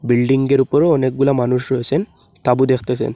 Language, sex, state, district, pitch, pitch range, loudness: Bengali, male, Assam, Hailakandi, 130 Hz, 125-135 Hz, -16 LUFS